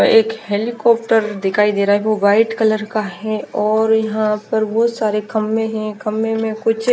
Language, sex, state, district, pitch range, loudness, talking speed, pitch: Hindi, female, Chandigarh, Chandigarh, 210-225 Hz, -17 LUFS, 180 wpm, 215 Hz